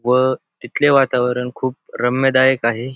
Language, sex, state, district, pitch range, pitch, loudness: Marathi, male, Maharashtra, Pune, 125-130 Hz, 130 Hz, -17 LUFS